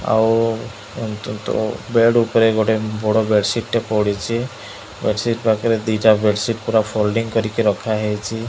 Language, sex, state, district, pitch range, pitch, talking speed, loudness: Odia, male, Odisha, Malkangiri, 105-115 Hz, 110 Hz, 125 wpm, -18 LUFS